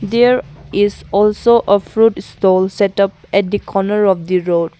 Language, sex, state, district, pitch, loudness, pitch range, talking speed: English, female, Arunachal Pradesh, Longding, 200 Hz, -15 LUFS, 185-210 Hz, 175 wpm